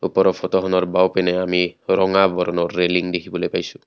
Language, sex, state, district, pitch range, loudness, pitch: Assamese, male, Assam, Kamrup Metropolitan, 90-95 Hz, -19 LUFS, 90 Hz